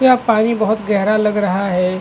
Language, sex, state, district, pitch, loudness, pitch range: Hindi, male, Chhattisgarh, Bastar, 210 Hz, -16 LUFS, 200-220 Hz